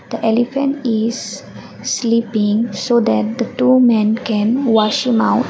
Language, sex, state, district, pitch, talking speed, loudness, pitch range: English, female, Assam, Kamrup Metropolitan, 230 Hz, 130 wpm, -16 LUFS, 220-245 Hz